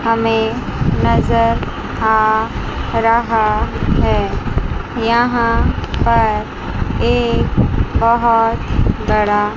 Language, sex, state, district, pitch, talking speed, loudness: Hindi, female, Chandigarh, Chandigarh, 215 Hz, 65 wpm, -16 LUFS